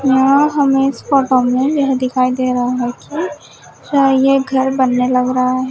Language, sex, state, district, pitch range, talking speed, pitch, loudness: Hindi, female, Uttar Pradesh, Shamli, 255-275 Hz, 190 wpm, 265 Hz, -15 LUFS